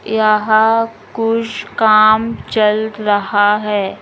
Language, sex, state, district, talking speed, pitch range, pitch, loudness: Magahi, female, Bihar, Gaya, 105 wpm, 210-225 Hz, 215 Hz, -14 LUFS